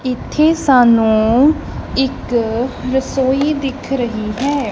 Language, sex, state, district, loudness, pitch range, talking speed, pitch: Punjabi, female, Punjab, Kapurthala, -15 LUFS, 235-275 Hz, 90 wpm, 260 Hz